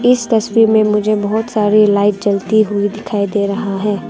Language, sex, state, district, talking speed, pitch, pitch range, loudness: Hindi, female, Arunachal Pradesh, Longding, 190 wpm, 210 Hz, 205-220 Hz, -14 LUFS